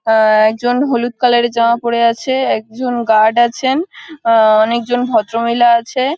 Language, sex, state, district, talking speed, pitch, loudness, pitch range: Bengali, female, West Bengal, Kolkata, 145 wpm, 235 Hz, -13 LUFS, 230-255 Hz